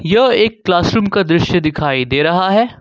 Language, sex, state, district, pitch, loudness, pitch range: Hindi, male, Jharkhand, Ranchi, 180 Hz, -14 LUFS, 160-220 Hz